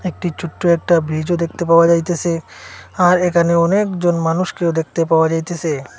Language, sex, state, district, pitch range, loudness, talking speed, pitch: Bengali, male, Assam, Hailakandi, 160-175 Hz, -16 LUFS, 150 wpm, 170 Hz